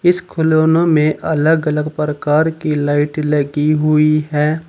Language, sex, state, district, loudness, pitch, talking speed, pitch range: Hindi, male, Uttar Pradesh, Saharanpur, -15 LUFS, 155 Hz, 140 wpm, 150-160 Hz